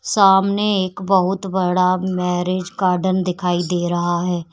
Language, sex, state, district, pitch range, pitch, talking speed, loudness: Hindi, female, Uttar Pradesh, Shamli, 180-190 Hz, 185 Hz, 130 wpm, -18 LUFS